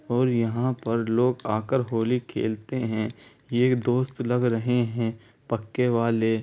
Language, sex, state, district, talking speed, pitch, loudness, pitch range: Hindi, male, Uttar Pradesh, Muzaffarnagar, 140 wpm, 120 Hz, -25 LUFS, 115-125 Hz